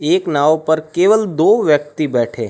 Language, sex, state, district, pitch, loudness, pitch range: Hindi, male, Rajasthan, Bikaner, 155 Hz, -15 LUFS, 150-170 Hz